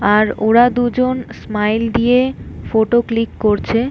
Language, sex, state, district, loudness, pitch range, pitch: Bengali, female, West Bengal, North 24 Parganas, -16 LUFS, 215-245 Hz, 230 Hz